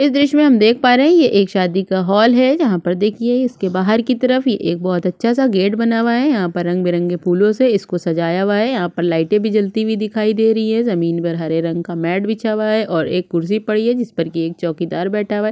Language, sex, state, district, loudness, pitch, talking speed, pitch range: Hindi, female, Chhattisgarh, Sukma, -16 LUFS, 210 Hz, 275 wpm, 175-230 Hz